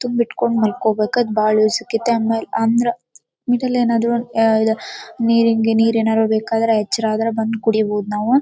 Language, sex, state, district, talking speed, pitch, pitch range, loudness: Kannada, female, Karnataka, Dharwad, 135 wpm, 225 Hz, 220-235 Hz, -17 LUFS